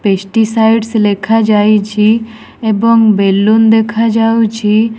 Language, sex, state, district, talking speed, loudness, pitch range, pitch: Odia, female, Odisha, Nuapada, 70 wpm, -10 LUFS, 210-225 Hz, 220 Hz